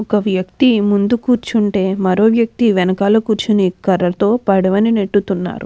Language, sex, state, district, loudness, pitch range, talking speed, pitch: Telugu, female, Andhra Pradesh, Anantapur, -15 LUFS, 190-220 Hz, 105 wpm, 205 Hz